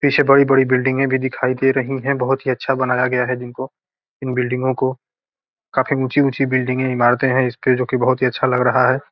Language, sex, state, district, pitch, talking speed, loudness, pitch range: Hindi, male, Bihar, Gopalganj, 130 Hz, 225 wpm, -17 LUFS, 125-135 Hz